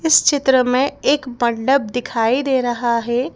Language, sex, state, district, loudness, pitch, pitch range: Hindi, female, Madhya Pradesh, Bhopal, -17 LUFS, 250 Hz, 240-275 Hz